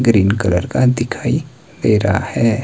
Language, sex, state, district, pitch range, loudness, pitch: Hindi, male, Himachal Pradesh, Shimla, 100-120 Hz, -16 LUFS, 110 Hz